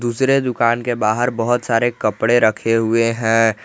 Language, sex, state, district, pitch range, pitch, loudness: Hindi, male, Jharkhand, Garhwa, 115-120 Hz, 115 Hz, -17 LUFS